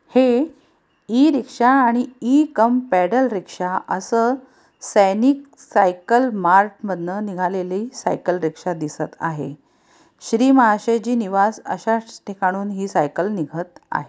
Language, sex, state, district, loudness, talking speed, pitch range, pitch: Marathi, female, Maharashtra, Pune, -19 LUFS, 100 wpm, 185-250 Hz, 215 Hz